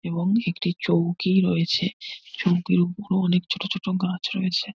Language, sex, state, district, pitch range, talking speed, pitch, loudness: Bengali, male, West Bengal, North 24 Parganas, 175-190 Hz, 140 wpm, 185 Hz, -24 LUFS